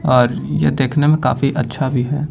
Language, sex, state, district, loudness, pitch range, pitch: Hindi, male, Punjab, Kapurthala, -17 LUFS, 125-150 Hz, 130 Hz